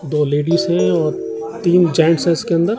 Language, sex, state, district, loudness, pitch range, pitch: Hindi, male, Delhi, New Delhi, -16 LUFS, 155-180 Hz, 170 Hz